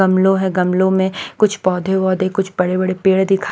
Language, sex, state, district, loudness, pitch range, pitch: Hindi, female, Maharashtra, Washim, -16 LUFS, 185-190 Hz, 190 Hz